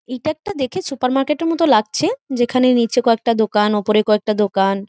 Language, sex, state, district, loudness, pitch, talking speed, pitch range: Bengali, female, West Bengal, Jhargram, -17 LUFS, 245 Hz, 170 wpm, 215-275 Hz